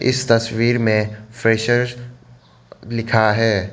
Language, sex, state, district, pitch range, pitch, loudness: Hindi, male, Arunachal Pradesh, Lower Dibang Valley, 110-120 Hz, 115 Hz, -18 LUFS